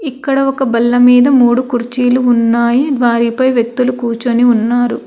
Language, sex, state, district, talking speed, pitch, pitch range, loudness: Telugu, female, Telangana, Hyderabad, 130 wpm, 245 Hz, 235-255 Hz, -12 LUFS